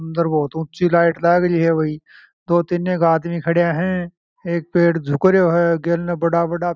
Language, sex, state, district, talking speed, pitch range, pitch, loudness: Marwari, male, Rajasthan, Churu, 175 wpm, 165-175 Hz, 170 Hz, -18 LUFS